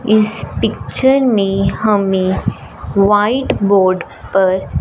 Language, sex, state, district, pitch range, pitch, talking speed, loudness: Hindi, female, Punjab, Fazilka, 190-215 Hz, 200 Hz, 85 wpm, -15 LUFS